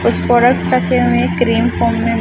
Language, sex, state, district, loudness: Hindi, female, Chhattisgarh, Raipur, -14 LUFS